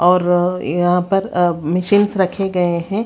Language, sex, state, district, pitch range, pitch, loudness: Hindi, female, Haryana, Rohtak, 175-195 Hz, 180 Hz, -17 LUFS